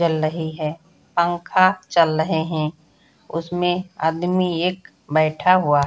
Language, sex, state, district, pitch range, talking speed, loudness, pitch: Hindi, female, Bihar, Samastipur, 155-180 Hz, 135 wpm, -21 LUFS, 165 Hz